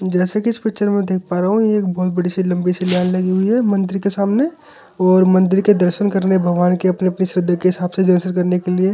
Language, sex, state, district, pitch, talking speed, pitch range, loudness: Hindi, male, Delhi, New Delhi, 185 Hz, 270 wpm, 180-200 Hz, -16 LUFS